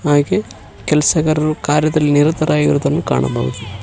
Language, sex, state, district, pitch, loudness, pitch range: Kannada, male, Karnataka, Koppal, 150 Hz, -15 LUFS, 100-155 Hz